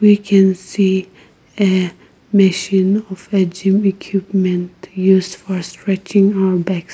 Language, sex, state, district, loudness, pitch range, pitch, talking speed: English, female, Nagaland, Kohima, -16 LUFS, 185-195 Hz, 190 Hz, 120 wpm